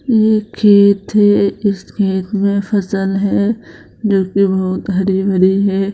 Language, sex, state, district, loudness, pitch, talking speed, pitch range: Hindi, female, Bihar, Madhepura, -14 LUFS, 200 Hz, 130 wpm, 195-205 Hz